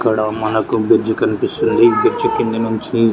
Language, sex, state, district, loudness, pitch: Telugu, male, Andhra Pradesh, Srikakulam, -16 LUFS, 115 Hz